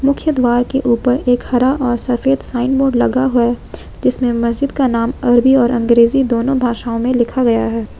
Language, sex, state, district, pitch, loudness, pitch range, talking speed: Hindi, female, Jharkhand, Ranchi, 245 Hz, -14 LUFS, 235-260 Hz, 190 wpm